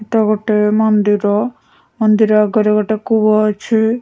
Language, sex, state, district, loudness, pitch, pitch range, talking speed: Odia, female, Odisha, Khordha, -14 LUFS, 215 Hz, 210-220 Hz, 120 wpm